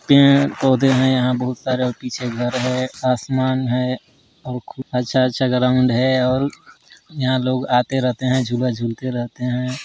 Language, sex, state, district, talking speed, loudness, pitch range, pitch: Hindi, male, Chhattisgarh, Sarguja, 165 wpm, -19 LUFS, 125-130 Hz, 130 Hz